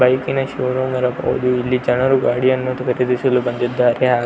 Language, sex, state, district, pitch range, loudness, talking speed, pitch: Kannada, male, Karnataka, Belgaum, 125-130 Hz, -18 LUFS, 155 wpm, 125 Hz